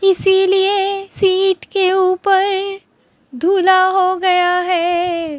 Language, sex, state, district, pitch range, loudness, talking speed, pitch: Hindi, female, Uttar Pradesh, Hamirpur, 360-390 Hz, -15 LUFS, 90 wpm, 380 Hz